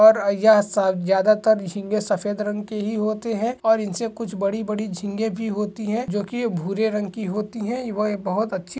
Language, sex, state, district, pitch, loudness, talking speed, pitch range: Hindi, male, Chhattisgarh, Balrampur, 210 Hz, -23 LUFS, 230 wpm, 200-220 Hz